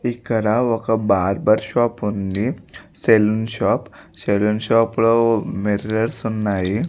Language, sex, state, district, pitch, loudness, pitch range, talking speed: Telugu, male, Andhra Pradesh, Visakhapatnam, 110 Hz, -19 LUFS, 105-115 Hz, 115 wpm